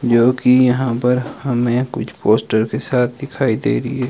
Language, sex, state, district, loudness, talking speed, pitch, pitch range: Hindi, male, Himachal Pradesh, Shimla, -17 LUFS, 190 wpm, 125 Hz, 120-130 Hz